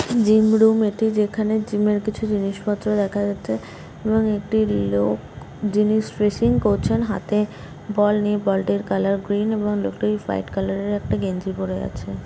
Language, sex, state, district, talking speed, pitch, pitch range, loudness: Bengali, female, West Bengal, Kolkata, 155 wpm, 205 Hz, 180-215 Hz, -21 LUFS